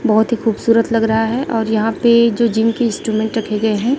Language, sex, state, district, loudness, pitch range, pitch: Hindi, female, Chhattisgarh, Raipur, -16 LUFS, 220-235 Hz, 225 Hz